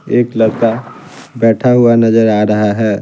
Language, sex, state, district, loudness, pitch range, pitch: Hindi, male, Bihar, Patna, -11 LUFS, 110-120 Hz, 115 Hz